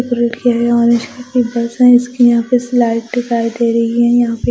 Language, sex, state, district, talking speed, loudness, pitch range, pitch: Hindi, female, Odisha, Malkangiri, 215 wpm, -13 LUFS, 235-245 Hz, 235 Hz